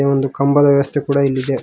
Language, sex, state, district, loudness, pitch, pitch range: Kannada, male, Karnataka, Koppal, -15 LUFS, 140 Hz, 135-140 Hz